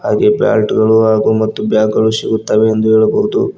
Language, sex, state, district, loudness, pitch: Kannada, male, Karnataka, Koppal, -12 LUFS, 110 Hz